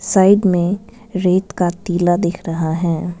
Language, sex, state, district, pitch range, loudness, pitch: Hindi, female, Arunachal Pradesh, Lower Dibang Valley, 175-190 Hz, -17 LUFS, 180 Hz